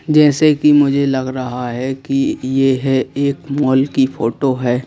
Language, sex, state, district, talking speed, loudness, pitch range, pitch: Hindi, male, Madhya Pradesh, Bhopal, 170 wpm, -15 LUFS, 130-145 Hz, 135 Hz